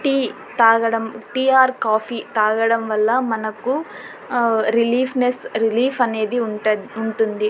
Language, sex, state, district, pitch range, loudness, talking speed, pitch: Telugu, female, Andhra Pradesh, Anantapur, 220-250 Hz, -19 LUFS, 105 wpm, 230 Hz